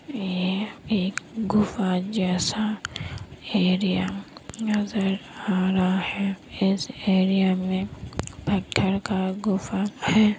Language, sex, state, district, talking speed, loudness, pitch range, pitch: Hindi, female, Bihar, Kishanganj, 100 wpm, -25 LUFS, 190-210 Hz, 195 Hz